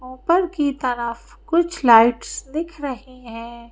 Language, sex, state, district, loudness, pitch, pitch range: Hindi, female, Madhya Pradesh, Bhopal, -20 LUFS, 255 Hz, 235-310 Hz